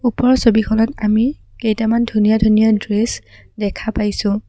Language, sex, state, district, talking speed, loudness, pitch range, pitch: Assamese, female, Assam, Sonitpur, 120 wpm, -16 LUFS, 215-230 Hz, 220 Hz